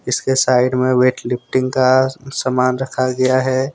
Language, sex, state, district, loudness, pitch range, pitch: Hindi, male, Jharkhand, Deoghar, -16 LUFS, 125-130 Hz, 130 Hz